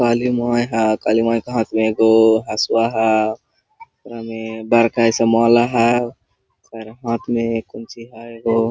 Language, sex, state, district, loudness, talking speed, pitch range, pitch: Hindi, male, Jharkhand, Sahebganj, -17 LUFS, 160 wpm, 110-120 Hz, 115 Hz